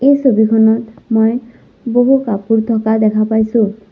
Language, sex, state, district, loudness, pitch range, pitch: Assamese, female, Assam, Sonitpur, -13 LUFS, 220-240 Hz, 225 Hz